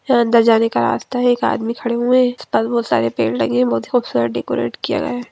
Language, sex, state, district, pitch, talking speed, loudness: Hindi, female, Bihar, Gaya, 230 Hz, 295 wpm, -17 LUFS